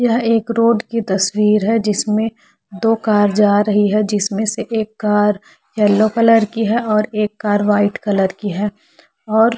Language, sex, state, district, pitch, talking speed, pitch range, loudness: Hindi, female, Chhattisgarh, Korba, 210 Hz, 175 wpm, 205-225 Hz, -16 LUFS